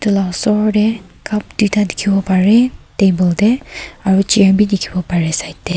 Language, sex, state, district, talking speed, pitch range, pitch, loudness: Nagamese, female, Nagaland, Kohima, 175 wpm, 185-210 Hz, 200 Hz, -14 LUFS